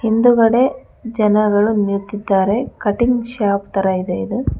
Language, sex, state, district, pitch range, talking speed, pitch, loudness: Kannada, female, Karnataka, Bangalore, 200-230 Hz, 105 wpm, 210 Hz, -16 LUFS